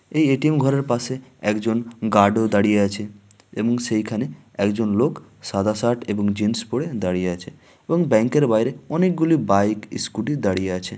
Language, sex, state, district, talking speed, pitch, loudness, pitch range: Bengali, male, West Bengal, Dakshin Dinajpur, 140 wpm, 110 Hz, -21 LUFS, 100-125 Hz